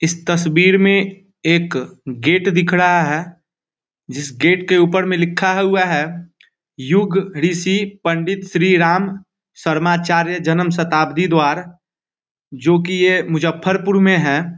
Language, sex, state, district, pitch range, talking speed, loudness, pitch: Hindi, male, Bihar, Muzaffarpur, 165-190 Hz, 135 wpm, -16 LUFS, 175 Hz